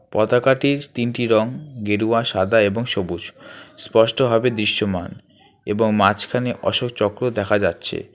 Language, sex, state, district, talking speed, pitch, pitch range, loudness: Bengali, male, West Bengal, Alipurduar, 120 wpm, 115 Hz, 105-125 Hz, -20 LUFS